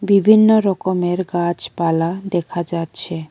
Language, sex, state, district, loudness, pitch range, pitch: Bengali, female, Tripura, West Tripura, -17 LUFS, 170-195 Hz, 175 Hz